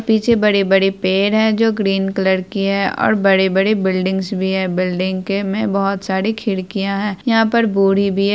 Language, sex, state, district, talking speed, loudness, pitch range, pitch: Hindi, female, Bihar, Araria, 185 wpm, -16 LUFS, 190-210 Hz, 195 Hz